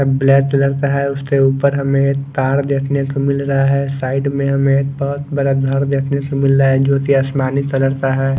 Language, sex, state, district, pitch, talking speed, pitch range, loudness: Hindi, male, Chandigarh, Chandigarh, 140 Hz, 220 wpm, 135-140 Hz, -16 LUFS